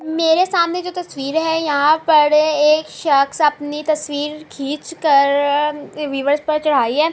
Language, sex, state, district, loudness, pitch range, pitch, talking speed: Urdu, female, Andhra Pradesh, Anantapur, -17 LUFS, 290-320 Hz, 300 Hz, 135 wpm